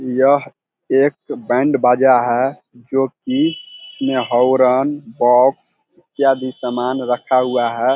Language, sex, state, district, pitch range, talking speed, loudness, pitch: Hindi, male, Bihar, Vaishali, 125-135 Hz, 115 wpm, -16 LUFS, 130 Hz